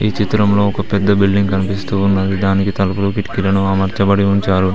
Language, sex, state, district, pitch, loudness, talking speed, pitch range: Telugu, male, Telangana, Mahabubabad, 100 Hz, -15 LUFS, 140 wpm, 95-100 Hz